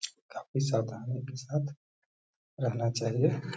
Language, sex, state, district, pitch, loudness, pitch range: Hindi, male, Bihar, Gaya, 130 Hz, -33 LUFS, 115-140 Hz